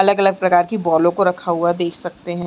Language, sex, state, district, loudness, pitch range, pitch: Hindi, female, Chhattisgarh, Sarguja, -17 LUFS, 175-190 Hz, 175 Hz